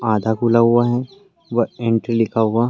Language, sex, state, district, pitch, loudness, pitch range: Hindi, male, Uttar Pradesh, Varanasi, 115 Hz, -18 LUFS, 115-120 Hz